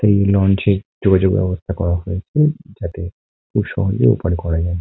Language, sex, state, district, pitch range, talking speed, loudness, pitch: Bengali, male, West Bengal, Kolkata, 90-100 Hz, 160 wpm, -18 LUFS, 95 Hz